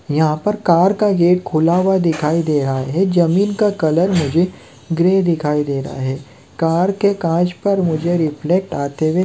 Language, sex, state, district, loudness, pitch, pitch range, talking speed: Hindi, male, Chhattisgarh, Rajnandgaon, -16 LUFS, 170 Hz, 155-185 Hz, 180 wpm